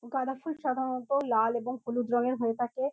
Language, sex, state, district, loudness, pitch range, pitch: Bengali, female, West Bengal, North 24 Parganas, -30 LUFS, 240-265 Hz, 255 Hz